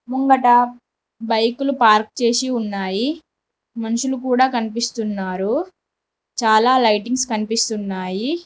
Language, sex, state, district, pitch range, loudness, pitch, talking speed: Telugu, female, Telangana, Mahabubabad, 220-255 Hz, -18 LUFS, 235 Hz, 80 wpm